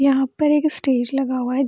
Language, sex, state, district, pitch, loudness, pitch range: Hindi, female, Bihar, Vaishali, 270 Hz, -19 LUFS, 260-285 Hz